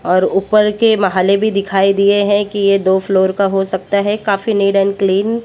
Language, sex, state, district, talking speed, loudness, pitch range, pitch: Hindi, female, Maharashtra, Mumbai Suburban, 230 wpm, -14 LUFS, 195-205 Hz, 200 Hz